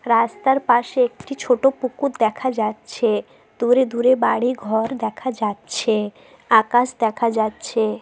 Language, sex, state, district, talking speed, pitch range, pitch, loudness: Bengali, female, West Bengal, Jhargram, 125 wpm, 220-255 Hz, 235 Hz, -20 LUFS